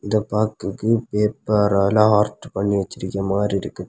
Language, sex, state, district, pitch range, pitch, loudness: Tamil, male, Tamil Nadu, Kanyakumari, 100-105 Hz, 105 Hz, -20 LUFS